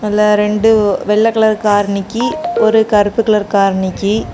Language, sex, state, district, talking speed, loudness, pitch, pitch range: Tamil, female, Tamil Nadu, Kanyakumari, 150 wpm, -13 LUFS, 210 Hz, 205-220 Hz